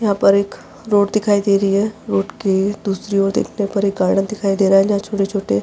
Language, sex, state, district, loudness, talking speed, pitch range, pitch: Hindi, female, Uttar Pradesh, Jyotiba Phule Nagar, -17 LUFS, 245 wpm, 195-205 Hz, 200 Hz